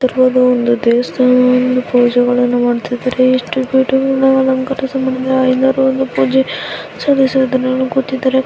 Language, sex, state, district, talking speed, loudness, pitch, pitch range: Kannada, female, Karnataka, Gulbarga, 70 wpm, -13 LUFS, 260 Hz, 250-265 Hz